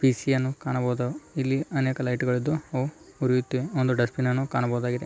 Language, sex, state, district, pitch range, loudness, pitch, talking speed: Kannada, male, Karnataka, Raichur, 125-135 Hz, -26 LUFS, 130 Hz, 155 wpm